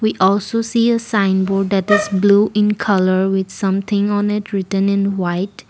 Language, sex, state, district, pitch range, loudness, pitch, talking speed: English, female, Assam, Kamrup Metropolitan, 195-210 Hz, -16 LUFS, 200 Hz, 180 wpm